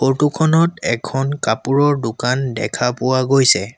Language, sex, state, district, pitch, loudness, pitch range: Assamese, male, Assam, Sonitpur, 135 Hz, -17 LUFS, 125-145 Hz